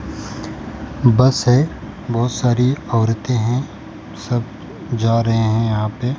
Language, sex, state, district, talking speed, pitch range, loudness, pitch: Hindi, male, Maharashtra, Mumbai Suburban, 115 wpm, 115-125 Hz, -18 LUFS, 120 Hz